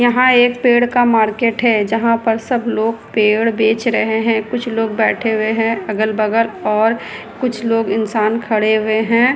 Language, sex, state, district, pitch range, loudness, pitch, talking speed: Hindi, female, Bihar, Kishanganj, 220-235 Hz, -15 LUFS, 225 Hz, 175 wpm